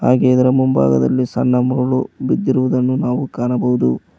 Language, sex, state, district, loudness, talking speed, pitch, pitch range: Kannada, male, Karnataka, Koppal, -16 LUFS, 115 wpm, 125 Hz, 125-130 Hz